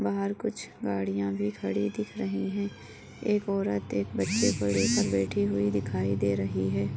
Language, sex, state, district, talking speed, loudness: Hindi, female, Maharashtra, Solapur, 170 wpm, -29 LUFS